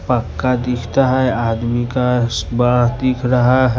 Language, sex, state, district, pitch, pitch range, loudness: Hindi, male, Bihar, West Champaran, 125 Hz, 120-130 Hz, -16 LUFS